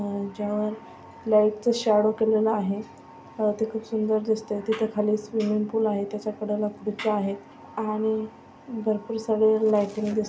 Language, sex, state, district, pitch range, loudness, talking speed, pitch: Marathi, female, Maharashtra, Sindhudurg, 210-220 Hz, -25 LUFS, 150 wpm, 215 Hz